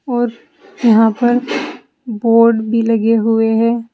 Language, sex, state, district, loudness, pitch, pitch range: Hindi, female, Uttar Pradesh, Saharanpur, -14 LUFS, 230 Hz, 225-235 Hz